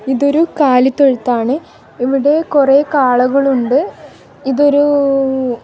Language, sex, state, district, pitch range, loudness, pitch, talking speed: Malayalam, female, Kerala, Kasaragod, 260-285 Hz, -13 LUFS, 275 Hz, 75 wpm